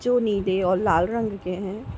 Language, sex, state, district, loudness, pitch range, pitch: Hindi, female, Uttar Pradesh, Ghazipur, -23 LUFS, 185-220 Hz, 195 Hz